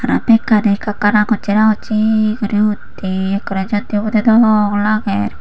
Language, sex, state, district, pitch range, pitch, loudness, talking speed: Chakma, female, Tripura, Unakoti, 205-215 Hz, 210 Hz, -15 LUFS, 145 wpm